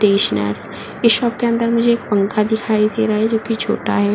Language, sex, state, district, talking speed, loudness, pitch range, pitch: Hindi, female, Uttar Pradesh, Muzaffarnagar, 215 wpm, -17 LUFS, 205-230 Hz, 220 Hz